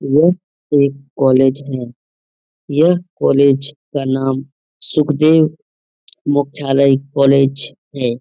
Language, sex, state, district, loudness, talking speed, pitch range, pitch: Hindi, male, Bihar, Lakhisarai, -15 LUFS, 95 wpm, 135-150 Hz, 140 Hz